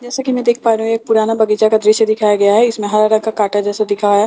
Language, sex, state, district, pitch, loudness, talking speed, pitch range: Hindi, female, Bihar, Katihar, 220 Hz, -14 LUFS, 335 wpm, 210-225 Hz